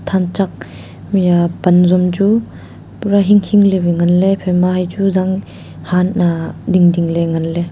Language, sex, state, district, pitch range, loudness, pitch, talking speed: Wancho, female, Arunachal Pradesh, Longding, 170-195 Hz, -14 LUFS, 180 Hz, 170 wpm